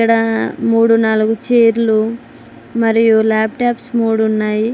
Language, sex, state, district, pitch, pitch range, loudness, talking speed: Telugu, female, Telangana, Mahabubabad, 225 Hz, 220-230 Hz, -14 LUFS, 100 wpm